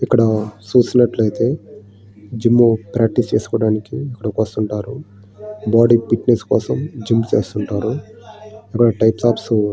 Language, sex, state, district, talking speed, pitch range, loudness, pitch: Telugu, male, Andhra Pradesh, Srikakulam, 85 wpm, 105-120 Hz, -17 LUFS, 110 Hz